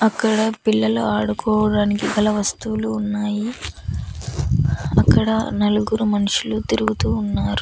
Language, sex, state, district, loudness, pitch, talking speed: Telugu, female, Andhra Pradesh, Annamaya, -20 LUFS, 210 Hz, 85 wpm